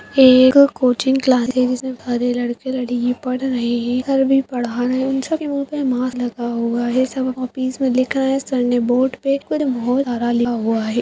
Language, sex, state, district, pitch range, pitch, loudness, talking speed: Hindi, female, Bihar, Jahanabad, 245-265 Hz, 255 Hz, -18 LUFS, 225 wpm